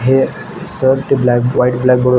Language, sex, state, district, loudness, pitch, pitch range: Marathi, male, Maharashtra, Nagpur, -14 LUFS, 125 Hz, 125-130 Hz